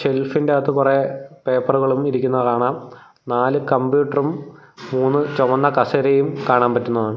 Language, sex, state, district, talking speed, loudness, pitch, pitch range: Malayalam, male, Kerala, Thiruvananthapuram, 100 wpm, -18 LUFS, 135 Hz, 125-140 Hz